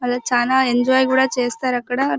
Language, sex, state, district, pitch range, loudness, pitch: Telugu, female, Karnataka, Bellary, 245-260 Hz, -18 LUFS, 250 Hz